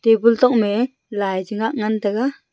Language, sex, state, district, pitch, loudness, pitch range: Wancho, female, Arunachal Pradesh, Longding, 225 Hz, -19 LUFS, 210-245 Hz